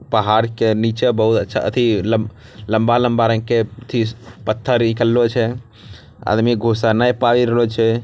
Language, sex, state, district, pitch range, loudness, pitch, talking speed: Angika, male, Bihar, Bhagalpur, 110-120 Hz, -17 LUFS, 115 Hz, 165 wpm